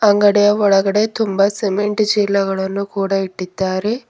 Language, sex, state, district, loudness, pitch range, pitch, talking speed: Kannada, female, Karnataka, Bidar, -16 LUFS, 195-210 Hz, 200 Hz, 105 wpm